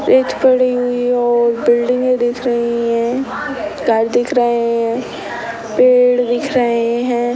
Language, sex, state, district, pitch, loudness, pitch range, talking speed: Hindi, male, Bihar, Sitamarhi, 240 Hz, -15 LUFS, 235-250 Hz, 140 wpm